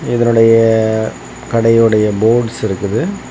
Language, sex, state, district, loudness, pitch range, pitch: Tamil, male, Tamil Nadu, Kanyakumari, -13 LUFS, 110-115 Hz, 115 Hz